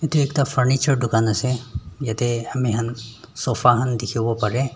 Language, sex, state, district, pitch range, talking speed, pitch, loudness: Nagamese, male, Nagaland, Dimapur, 115-130 Hz, 140 wpm, 120 Hz, -21 LUFS